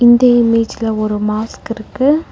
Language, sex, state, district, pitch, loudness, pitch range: Tamil, female, Tamil Nadu, Nilgiris, 230 Hz, -14 LUFS, 215-240 Hz